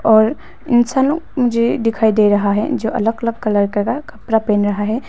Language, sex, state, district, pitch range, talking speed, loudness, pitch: Hindi, female, Arunachal Pradesh, Papum Pare, 210-240 Hz, 200 wpm, -16 LUFS, 225 Hz